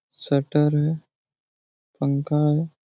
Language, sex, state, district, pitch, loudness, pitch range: Hindi, male, Jharkhand, Jamtara, 150 Hz, -23 LUFS, 140-155 Hz